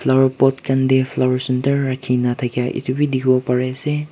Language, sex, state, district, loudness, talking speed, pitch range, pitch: Nagamese, male, Nagaland, Kohima, -18 LUFS, 175 wpm, 125-135 Hz, 130 Hz